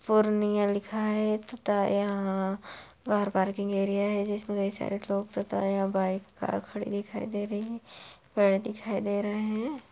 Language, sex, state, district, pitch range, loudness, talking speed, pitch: Hindi, female, Bihar, Purnia, 200-215 Hz, -29 LUFS, 155 wpm, 205 Hz